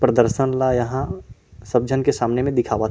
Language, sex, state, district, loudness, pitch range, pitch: Chhattisgarhi, male, Chhattisgarh, Rajnandgaon, -20 LUFS, 115-130 Hz, 125 Hz